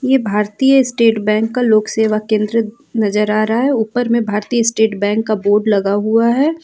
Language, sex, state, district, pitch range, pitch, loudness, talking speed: Hindi, female, Jharkhand, Ranchi, 210-235 Hz, 220 Hz, -15 LUFS, 200 wpm